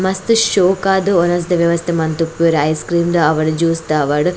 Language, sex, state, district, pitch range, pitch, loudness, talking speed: Tulu, female, Karnataka, Dakshina Kannada, 160-185 Hz, 170 Hz, -15 LUFS, 150 wpm